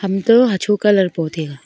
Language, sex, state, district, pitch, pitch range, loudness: Wancho, female, Arunachal Pradesh, Longding, 195 Hz, 165-210 Hz, -15 LUFS